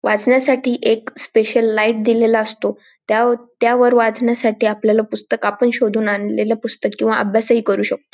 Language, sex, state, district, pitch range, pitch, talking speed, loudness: Marathi, female, Maharashtra, Dhule, 220-240 Hz, 230 Hz, 145 wpm, -16 LUFS